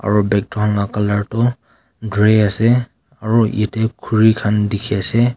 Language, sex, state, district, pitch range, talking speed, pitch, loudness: Nagamese, male, Nagaland, Kohima, 105-115 Hz, 125 wpm, 110 Hz, -16 LUFS